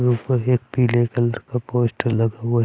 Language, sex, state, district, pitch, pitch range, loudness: Hindi, male, Chhattisgarh, Raipur, 120 Hz, 120-125 Hz, -21 LUFS